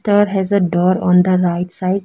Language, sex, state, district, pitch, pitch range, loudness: English, female, Arunachal Pradesh, Lower Dibang Valley, 185 Hz, 180-200 Hz, -15 LUFS